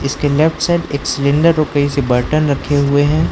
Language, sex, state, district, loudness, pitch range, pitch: Hindi, male, Arunachal Pradesh, Lower Dibang Valley, -15 LUFS, 140-155 Hz, 145 Hz